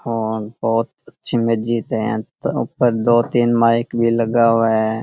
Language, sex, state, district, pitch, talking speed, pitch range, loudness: Rajasthani, male, Rajasthan, Churu, 115 Hz, 190 wpm, 115-120 Hz, -18 LUFS